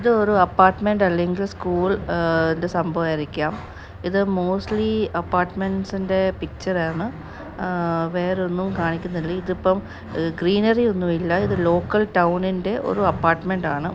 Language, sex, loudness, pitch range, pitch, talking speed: Malayalam, female, -21 LUFS, 170-195 Hz, 180 Hz, 80 wpm